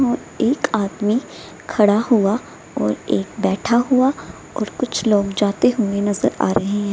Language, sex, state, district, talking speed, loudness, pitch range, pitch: Hindi, female, Bihar, Samastipur, 155 wpm, -19 LUFS, 205-245 Hz, 220 Hz